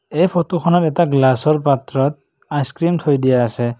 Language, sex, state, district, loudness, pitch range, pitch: Assamese, male, Assam, Kamrup Metropolitan, -16 LUFS, 135-170 Hz, 145 Hz